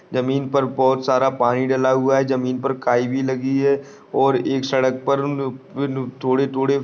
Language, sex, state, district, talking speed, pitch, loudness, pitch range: Hindi, male, Chhattisgarh, Bastar, 185 wpm, 135 Hz, -20 LUFS, 130-135 Hz